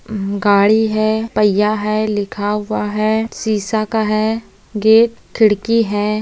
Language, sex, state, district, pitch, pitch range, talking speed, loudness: Hindi, female, Jharkhand, Sahebganj, 215 Hz, 210-220 Hz, 135 wpm, -16 LUFS